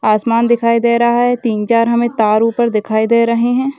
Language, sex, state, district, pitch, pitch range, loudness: Hindi, female, Rajasthan, Churu, 235 Hz, 225-235 Hz, -13 LUFS